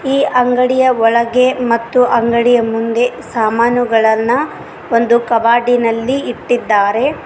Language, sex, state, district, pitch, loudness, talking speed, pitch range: Kannada, female, Karnataka, Koppal, 235 Hz, -13 LUFS, 90 wpm, 230-250 Hz